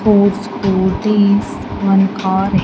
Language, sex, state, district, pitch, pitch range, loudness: English, female, Andhra Pradesh, Sri Satya Sai, 195 Hz, 190-205 Hz, -15 LUFS